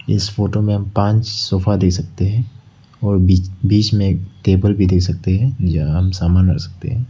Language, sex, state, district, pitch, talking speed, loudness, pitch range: Hindi, male, Arunachal Pradesh, Lower Dibang Valley, 100 Hz, 205 wpm, -17 LUFS, 90-105 Hz